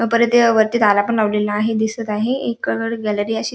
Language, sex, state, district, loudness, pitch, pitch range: Marathi, female, Maharashtra, Dhule, -17 LUFS, 225 Hz, 210-235 Hz